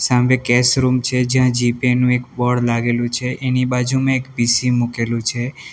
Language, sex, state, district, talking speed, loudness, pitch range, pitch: Gujarati, male, Gujarat, Valsad, 190 wpm, -17 LUFS, 120-125 Hz, 125 Hz